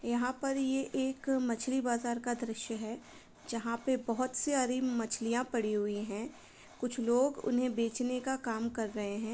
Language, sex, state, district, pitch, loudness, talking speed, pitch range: Hindi, female, Uttar Pradesh, Varanasi, 240 Hz, -34 LUFS, 165 wpm, 230-255 Hz